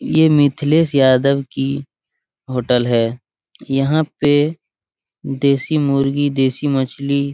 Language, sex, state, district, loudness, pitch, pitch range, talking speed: Hindi, male, Bihar, Araria, -17 LUFS, 140 Hz, 130-145 Hz, 105 wpm